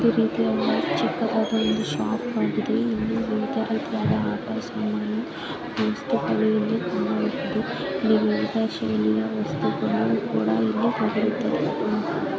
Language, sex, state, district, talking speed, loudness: Kannada, female, Karnataka, Gulbarga, 95 wpm, -24 LUFS